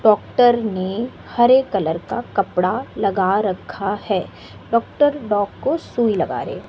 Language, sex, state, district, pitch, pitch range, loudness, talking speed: Hindi, female, Bihar, West Champaran, 215 Hz, 195-245 Hz, -19 LUFS, 135 wpm